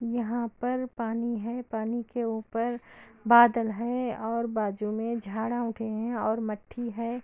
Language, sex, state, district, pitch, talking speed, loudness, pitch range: Hindi, female, Andhra Pradesh, Anantapur, 230 Hz, 165 wpm, -29 LUFS, 220-240 Hz